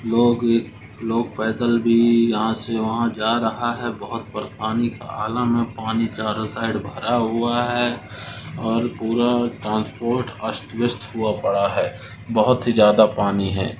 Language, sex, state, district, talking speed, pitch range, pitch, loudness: Hindi, female, Rajasthan, Nagaur, 145 wpm, 110-120 Hz, 115 Hz, -21 LUFS